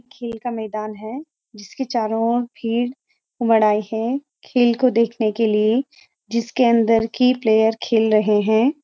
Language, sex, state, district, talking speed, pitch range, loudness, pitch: Hindi, female, Uttarakhand, Uttarkashi, 155 wpm, 220-250 Hz, -19 LUFS, 230 Hz